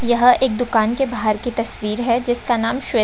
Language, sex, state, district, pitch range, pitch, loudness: Hindi, female, Bihar, Muzaffarpur, 225-245 Hz, 240 Hz, -18 LUFS